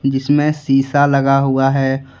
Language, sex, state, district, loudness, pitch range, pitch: Hindi, male, Jharkhand, Deoghar, -15 LUFS, 135-145 Hz, 135 Hz